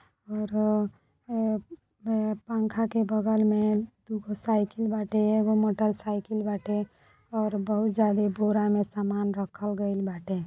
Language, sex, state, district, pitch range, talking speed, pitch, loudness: Bhojpuri, female, Uttar Pradesh, Deoria, 205-215 Hz, 135 wpm, 215 Hz, -28 LUFS